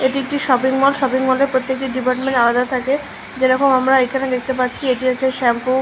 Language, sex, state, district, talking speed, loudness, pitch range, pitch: Bengali, female, West Bengal, Malda, 195 wpm, -17 LUFS, 255-265 Hz, 260 Hz